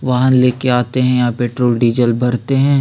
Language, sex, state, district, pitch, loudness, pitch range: Hindi, male, Chhattisgarh, Sukma, 125 Hz, -14 LUFS, 120-130 Hz